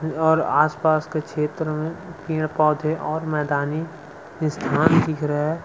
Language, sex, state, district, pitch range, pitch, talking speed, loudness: Hindi, male, Chhattisgarh, Sukma, 150-160 Hz, 155 Hz, 140 wpm, -22 LUFS